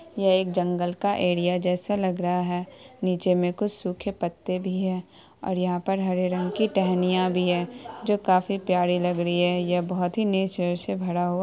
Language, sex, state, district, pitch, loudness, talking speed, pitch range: Hindi, female, Bihar, Saharsa, 180 Hz, -25 LUFS, 205 wpm, 180-190 Hz